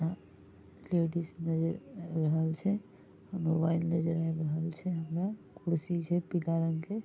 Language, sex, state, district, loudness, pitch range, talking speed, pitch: Maithili, female, Bihar, Vaishali, -33 LUFS, 160-175 Hz, 145 wpm, 165 Hz